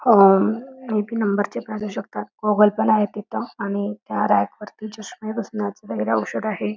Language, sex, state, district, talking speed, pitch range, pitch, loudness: Marathi, female, Karnataka, Belgaum, 150 wpm, 200-215 Hz, 210 Hz, -22 LUFS